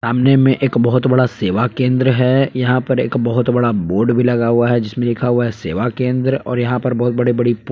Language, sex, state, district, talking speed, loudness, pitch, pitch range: Hindi, male, Jharkhand, Palamu, 225 wpm, -15 LUFS, 125 Hz, 120-130 Hz